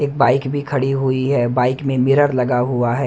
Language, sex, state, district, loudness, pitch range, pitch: Hindi, male, Haryana, Rohtak, -17 LUFS, 125-140 Hz, 130 Hz